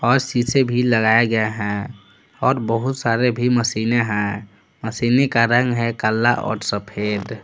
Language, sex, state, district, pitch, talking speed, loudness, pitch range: Hindi, male, Jharkhand, Palamu, 115 Hz, 155 wpm, -19 LUFS, 105-120 Hz